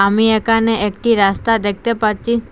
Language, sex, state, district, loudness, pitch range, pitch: Bengali, female, Assam, Hailakandi, -15 LUFS, 205-225 Hz, 220 Hz